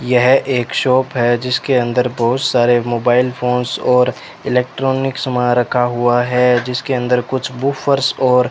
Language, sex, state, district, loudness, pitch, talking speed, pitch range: Hindi, male, Rajasthan, Bikaner, -15 LUFS, 125 Hz, 155 wpm, 120-130 Hz